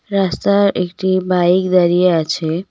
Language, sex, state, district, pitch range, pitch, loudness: Bengali, female, West Bengal, Cooch Behar, 175-190 Hz, 180 Hz, -15 LUFS